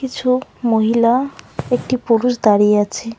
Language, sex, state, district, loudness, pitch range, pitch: Bengali, female, West Bengal, Cooch Behar, -16 LUFS, 225-255 Hz, 235 Hz